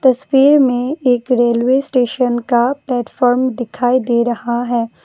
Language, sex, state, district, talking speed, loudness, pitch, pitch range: Hindi, female, Assam, Kamrup Metropolitan, 130 wpm, -15 LUFS, 245 Hz, 240-260 Hz